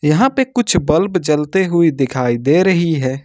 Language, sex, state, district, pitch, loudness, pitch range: Hindi, male, Jharkhand, Ranchi, 170 Hz, -15 LUFS, 140-190 Hz